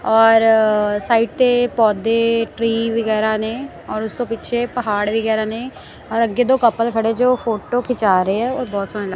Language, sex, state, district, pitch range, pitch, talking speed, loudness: Punjabi, female, Punjab, Kapurthala, 220-245 Hz, 225 Hz, 175 wpm, -17 LUFS